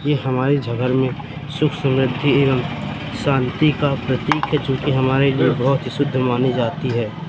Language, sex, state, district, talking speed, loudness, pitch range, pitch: Hindi, male, Madhya Pradesh, Katni, 175 wpm, -19 LUFS, 130-145 Hz, 135 Hz